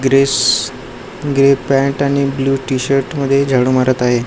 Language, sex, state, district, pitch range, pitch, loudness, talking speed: Marathi, male, Maharashtra, Gondia, 130-140 Hz, 135 Hz, -14 LUFS, 155 wpm